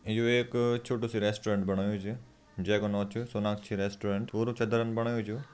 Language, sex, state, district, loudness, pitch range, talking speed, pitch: Hindi, male, Uttarakhand, Uttarkashi, -31 LUFS, 105-115 Hz, 195 wpm, 110 Hz